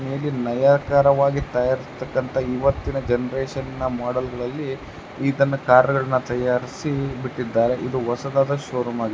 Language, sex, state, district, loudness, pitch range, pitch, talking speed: Kannada, male, Karnataka, Chamarajanagar, -22 LUFS, 125-140 Hz, 130 Hz, 105 wpm